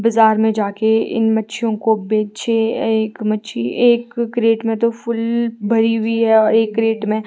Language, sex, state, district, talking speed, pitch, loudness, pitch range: Hindi, female, Himachal Pradesh, Shimla, 180 wpm, 225 Hz, -17 LUFS, 220-230 Hz